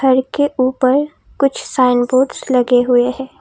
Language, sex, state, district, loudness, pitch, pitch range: Hindi, female, Assam, Kamrup Metropolitan, -15 LUFS, 255 Hz, 250-275 Hz